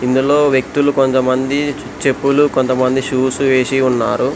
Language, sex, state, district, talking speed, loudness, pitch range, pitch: Telugu, male, Telangana, Hyderabad, 110 wpm, -15 LUFS, 130-140 Hz, 130 Hz